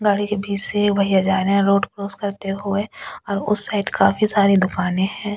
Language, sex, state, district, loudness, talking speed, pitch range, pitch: Hindi, female, Delhi, New Delhi, -18 LUFS, 215 wpm, 195-205 Hz, 200 Hz